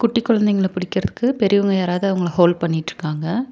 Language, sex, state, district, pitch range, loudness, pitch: Tamil, female, Tamil Nadu, Nilgiris, 175-215 Hz, -19 LUFS, 190 Hz